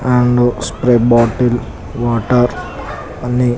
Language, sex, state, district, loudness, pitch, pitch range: Telugu, male, Telangana, Nalgonda, -14 LUFS, 120 Hz, 115-125 Hz